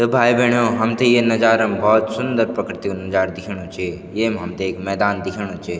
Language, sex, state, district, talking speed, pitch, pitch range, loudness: Garhwali, male, Uttarakhand, Tehri Garhwal, 215 wpm, 105 Hz, 95-115 Hz, -19 LUFS